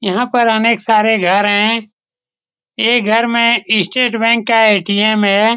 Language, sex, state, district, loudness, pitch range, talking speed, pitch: Hindi, male, Bihar, Saran, -12 LUFS, 205-235 Hz, 150 wpm, 220 Hz